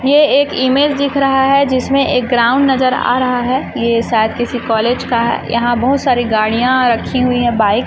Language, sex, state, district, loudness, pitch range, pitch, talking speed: Hindi, female, Chhattisgarh, Raipur, -13 LUFS, 235-270 Hz, 250 Hz, 215 wpm